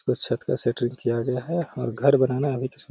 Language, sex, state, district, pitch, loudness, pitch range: Hindi, female, Bihar, Gaya, 130 Hz, -25 LUFS, 120-140 Hz